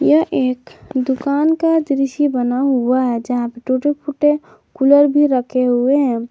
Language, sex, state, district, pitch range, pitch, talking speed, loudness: Hindi, female, Jharkhand, Garhwa, 250-290 Hz, 270 Hz, 150 wpm, -16 LUFS